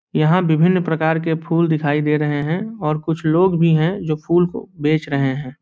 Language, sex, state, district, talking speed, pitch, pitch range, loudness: Hindi, male, Bihar, Saran, 215 wpm, 160 Hz, 150-170 Hz, -18 LUFS